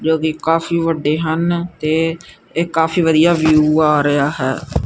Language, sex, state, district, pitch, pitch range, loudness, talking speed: Punjabi, male, Punjab, Kapurthala, 160 Hz, 155-165 Hz, -16 LUFS, 160 wpm